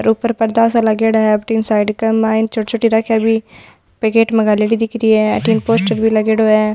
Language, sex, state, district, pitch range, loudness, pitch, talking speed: Marwari, female, Rajasthan, Nagaur, 220-225 Hz, -14 LUFS, 220 Hz, 215 wpm